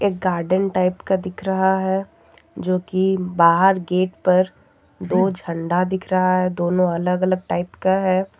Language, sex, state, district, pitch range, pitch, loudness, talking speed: Hindi, female, Jharkhand, Deoghar, 180-190 Hz, 185 Hz, -20 LUFS, 155 wpm